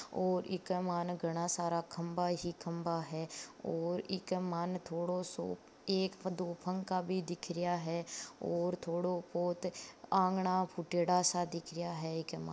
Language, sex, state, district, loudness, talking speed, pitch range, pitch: Marwari, female, Rajasthan, Nagaur, -37 LUFS, 155 wpm, 170-180 Hz, 175 Hz